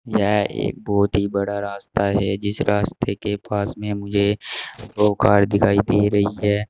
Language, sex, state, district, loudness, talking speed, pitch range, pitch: Hindi, male, Uttar Pradesh, Saharanpur, -20 LUFS, 170 wpm, 100-105 Hz, 100 Hz